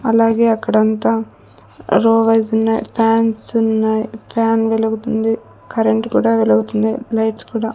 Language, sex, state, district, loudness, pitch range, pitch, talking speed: Telugu, female, Andhra Pradesh, Sri Satya Sai, -16 LUFS, 220-225 Hz, 225 Hz, 95 wpm